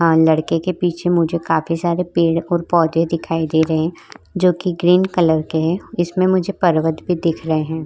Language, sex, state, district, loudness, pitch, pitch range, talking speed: Hindi, female, Maharashtra, Chandrapur, -17 LUFS, 170 Hz, 160-175 Hz, 200 wpm